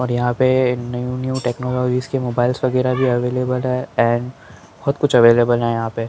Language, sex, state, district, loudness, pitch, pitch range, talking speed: Hindi, male, Maharashtra, Mumbai Suburban, -18 LUFS, 125 Hz, 120-130 Hz, 195 wpm